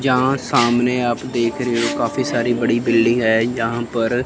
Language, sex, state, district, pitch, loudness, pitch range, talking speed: Hindi, female, Chandigarh, Chandigarh, 120 Hz, -18 LUFS, 115-125 Hz, 185 wpm